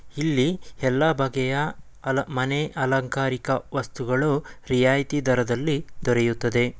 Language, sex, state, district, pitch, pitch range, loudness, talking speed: Kannada, male, Karnataka, Mysore, 135 Hz, 125-145 Hz, -24 LUFS, 90 wpm